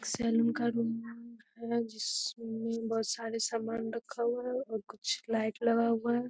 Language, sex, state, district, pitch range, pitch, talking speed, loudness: Hindi, female, Bihar, Jamui, 225-235 Hz, 230 Hz, 155 wpm, -33 LUFS